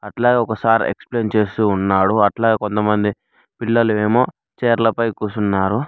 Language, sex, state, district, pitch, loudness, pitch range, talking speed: Telugu, male, Telangana, Hyderabad, 110 Hz, -18 LUFS, 105-115 Hz, 120 wpm